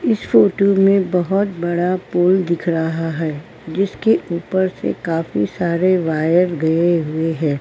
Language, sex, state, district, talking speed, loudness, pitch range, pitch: Hindi, female, Uttar Pradesh, Varanasi, 140 wpm, -17 LUFS, 165-185 Hz, 175 Hz